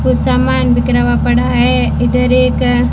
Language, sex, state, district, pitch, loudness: Hindi, female, Rajasthan, Bikaner, 80 Hz, -12 LUFS